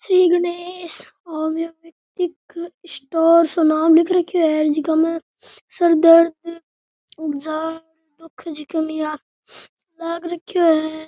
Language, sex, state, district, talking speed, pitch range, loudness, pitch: Rajasthani, male, Rajasthan, Nagaur, 100 wpm, 315-340 Hz, -18 LUFS, 330 Hz